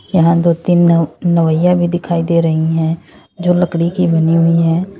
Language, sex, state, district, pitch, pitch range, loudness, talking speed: Hindi, female, Uttar Pradesh, Lalitpur, 170 Hz, 165-175 Hz, -13 LUFS, 190 wpm